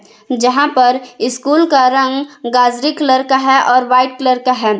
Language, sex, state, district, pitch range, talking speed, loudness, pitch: Hindi, female, Jharkhand, Palamu, 250-270 Hz, 175 wpm, -13 LUFS, 255 Hz